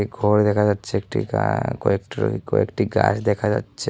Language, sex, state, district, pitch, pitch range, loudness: Bengali, male, Tripura, Unakoti, 105 Hz, 100-105 Hz, -21 LUFS